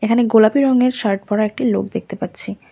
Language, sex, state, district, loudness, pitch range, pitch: Bengali, female, West Bengal, Cooch Behar, -17 LUFS, 215-250 Hz, 225 Hz